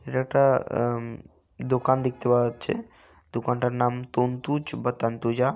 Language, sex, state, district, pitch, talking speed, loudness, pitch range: Bengali, male, West Bengal, Jalpaiguri, 125 Hz, 130 wpm, -25 LUFS, 120-130 Hz